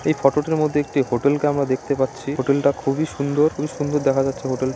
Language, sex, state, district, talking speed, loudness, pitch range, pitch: Bengali, male, West Bengal, Dakshin Dinajpur, 215 wpm, -21 LUFS, 135-150 Hz, 140 Hz